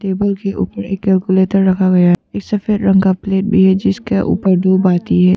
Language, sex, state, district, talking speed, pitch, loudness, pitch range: Hindi, female, Arunachal Pradesh, Papum Pare, 225 wpm, 190 Hz, -14 LUFS, 185-195 Hz